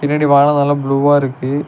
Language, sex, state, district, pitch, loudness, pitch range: Tamil, male, Tamil Nadu, Nilgiris, 145 Hz, -13 LUFS, 140-145 Hz